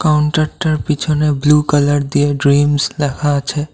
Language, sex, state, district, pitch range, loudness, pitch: Bengali, male, Assam, Kamrup Metropolitan, 145-150 Hz, -15 LUFS, 145 Hz